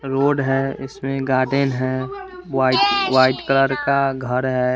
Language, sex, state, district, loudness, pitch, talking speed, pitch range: Hindi, male, Chandigarh, Chandigarh, -19 LUFS, 135 Hz, 150 wpm, 130-140 Hz